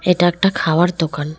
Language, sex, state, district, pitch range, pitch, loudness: Bengali, female, West Bengal, Cooch Behar, 160-180 Hz, 175 Hz, -16 LUFS